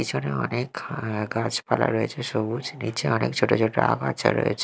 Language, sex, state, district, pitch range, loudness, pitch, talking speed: Bengali, male, Odisha, Malkangiri, 105-125 Hz, -25 LUFS, 115 Hz, 155 wpm